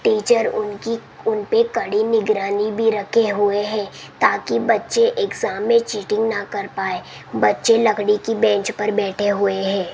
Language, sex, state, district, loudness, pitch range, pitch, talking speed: Hindi, female, Rajasthan, Jaipur, -19 LUFS, 205-230 Hz, 215 Hz, 150 wpm